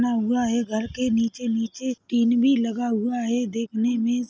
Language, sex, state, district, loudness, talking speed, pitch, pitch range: Hindi, female, Chhattisgarh, Rajnandgaon, -24 LUFS, 210 wpm, 235 Hz, 230-245 Hz